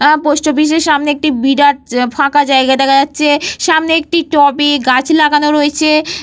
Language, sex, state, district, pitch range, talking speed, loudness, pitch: Bengali, female, Jharkhand, Jamtara, 280-310 Hz, 175 wpm, -11 LUFS, 295 Hz